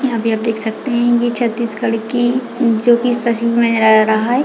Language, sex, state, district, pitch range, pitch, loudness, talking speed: Hindi, female, Chhattisgarh, Raigarh, 225-240 Hz, 235 Hz, -15 LUFS, 245 wpm